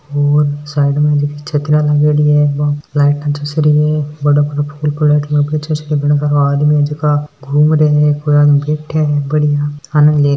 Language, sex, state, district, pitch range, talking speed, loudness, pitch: Marwari, female, Rajasthan, Nagaur, 145-150 Hz, 125 wpm, -13 LUFS, 150 Hz